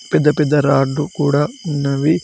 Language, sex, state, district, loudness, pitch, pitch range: Telugu, male, Telangana, Mahabubabad, -16 LUFS, 150 Hz, 140-150 Hz